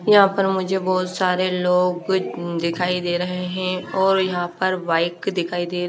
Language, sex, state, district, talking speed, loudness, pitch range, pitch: Hindi, female, Haryana, Charkhi Dadri, 185 wpm, -21 LUFS, 175-185 Hz, 180 Hz